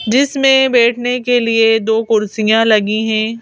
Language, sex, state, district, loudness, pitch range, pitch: Hindi, female, Madhya Pradesh, Bhopal, -13 LUFS, 220-245 Hz, 225 Hz